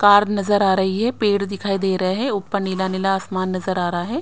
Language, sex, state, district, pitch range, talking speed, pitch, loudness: Hindi, female, Haryana, Rohtak, 190-205 Hz, 240 wpm, 195 Hz, -20 LUFS